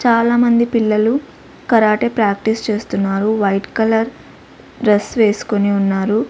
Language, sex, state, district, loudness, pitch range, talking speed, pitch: Telugu, female, Andhra Pradesh, Sri Satya Sai, -16 LUFS, 205-235 Hz, 95 wpm, 220 Hz